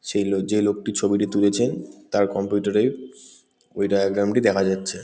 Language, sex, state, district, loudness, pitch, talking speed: Bengali, male, West Bengal, Kolkata, -22 LUFS, 100 Hz, 180 wpm